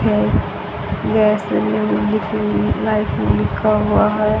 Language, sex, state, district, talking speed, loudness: Hindi, female, Haryana, Charkhi Dadri, 110 wpm, -17 LUFS